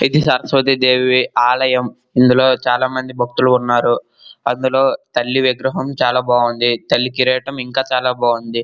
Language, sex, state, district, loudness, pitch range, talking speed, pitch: Telugu, male, Andhra Pradesh, Srikakulam, -15 LUFS, 120-130 Hz, 125 wpm, 125 Hz